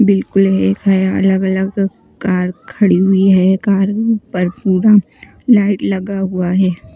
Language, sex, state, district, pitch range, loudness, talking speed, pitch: Hindi, female, Maharashtra, Mumbai Suburban, 185-200 Hz, -14 LUFS, 130 wpm, 195 Hz